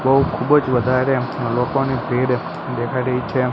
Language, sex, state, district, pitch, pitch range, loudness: Gujarati, male, Gujarat, Gandhinagar, 130 Hz, 125-135 Hz, -19 LUFS